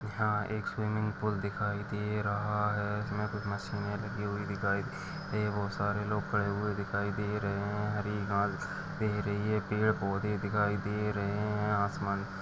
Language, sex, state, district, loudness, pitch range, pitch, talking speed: Hindi, male, Chhattisgarh, Jashpur, -33 LUFS, 100-105 Hz, 105 Hz, 170 wpm